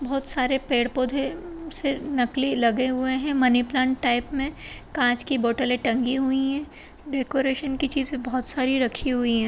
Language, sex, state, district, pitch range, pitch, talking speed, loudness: Hindi, female, Bihar, Madhepura, 250-275 Hz, 265 Hz, 165 wpm, -22 LUFS